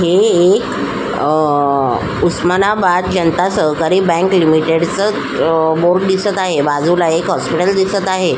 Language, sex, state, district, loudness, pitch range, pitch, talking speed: Marathi, female, Maharashtra, Solapur, -14 LUFS, 160-190 Hz, 175 Hz, 130 wpm